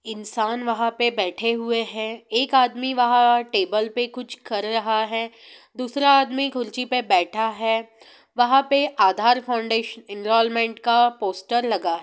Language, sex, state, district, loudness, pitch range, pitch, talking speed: Hindi, female, Bihar, Sitamarhi, -21 LUFS, 225-245 Hz, 230 Hz, 155 wpm